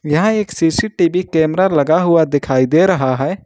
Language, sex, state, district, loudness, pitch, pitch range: Hindi, male, Jharkhand, Ranchi, -14 LUFS, 165 Hz, 145-190 Hz